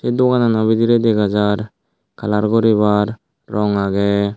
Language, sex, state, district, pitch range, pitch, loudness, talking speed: Chakma, male, Tripura, Dhalai, 105-115 Hz, 105 Hz, -16 LUFS, 110 wpm